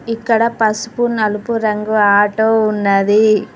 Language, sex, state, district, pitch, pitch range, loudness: Telugu, female, Telangana, Mahabubabad, 220 Hz, 210-225 Hz, -14 LUFS